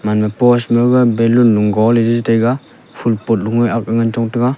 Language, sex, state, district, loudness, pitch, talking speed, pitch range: Wancho, male, Arunachal Pradesh, Longding, -14 LUFS, 115 Hz, 250 wpm, 115-120 Hz